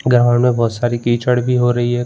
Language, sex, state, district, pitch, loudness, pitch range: Hindi, male, Chhattisgarh, Bilaspur, 120 Hz, -15 LUFS, 120-125 Hz